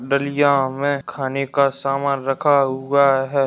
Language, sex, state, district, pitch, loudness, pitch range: Hindi, male, Bihar, Darbhanga, 140 Hz, -19 LUFS, 135-140 Hz